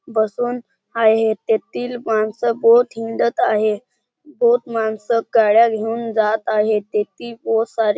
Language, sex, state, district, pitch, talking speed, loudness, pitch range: Marathi, male, Maharashtra, Chandrapur, 225 Hz, 120 wpm, -18 LUFS, 220-235 Hz